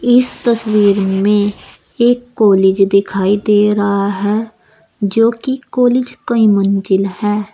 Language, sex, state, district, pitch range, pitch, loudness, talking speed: Hindi, female, Uttar Pradesh, Saharanpur, 200-235 Hz, 210 Hz, -14 LUFS, 120 wpm